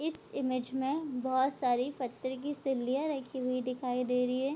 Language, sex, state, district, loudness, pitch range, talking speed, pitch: Hindi, female, Bihar, Bhagalpur, -33 LUFS, 250-275 Hz, 185 wpm, 260 Hz